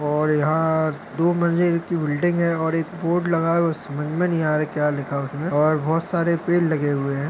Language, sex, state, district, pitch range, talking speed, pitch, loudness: Hindi, male, Maharashtra, Nagpur, 150-170 Hz, 245 wpm, 160 Hz, -21 LUFS